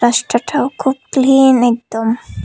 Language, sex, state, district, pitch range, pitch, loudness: Bengali, female, Tripura, Unakoti, 235-265 Hz, 245 Hz, -14 LUFS